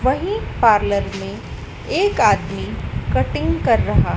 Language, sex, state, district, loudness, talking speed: Hindi, female, Madhya Pradesh, Dhar, -19 LUFS, 115 wpm